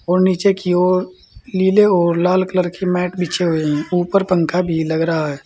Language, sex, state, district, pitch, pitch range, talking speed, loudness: Hindi, male, Uttar Pradesh, Saharanpur, 180 Hz, 170-185 Hz, 210 wpm, -17 LUFS